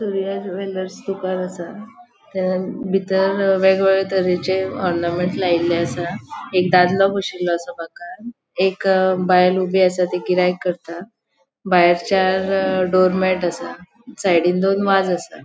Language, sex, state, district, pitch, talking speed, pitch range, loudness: Konkani, female, Goa, North and South Goa, 185 Hz, 115 wpm, 180-195 Hz, -18 LUFS